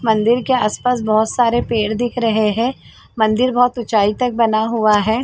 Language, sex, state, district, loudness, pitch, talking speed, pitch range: Hindi, female, Chhattisgarh, Bilaspur, -16 LUFS, 230 Hz, 185 wpm, 215-245 Hz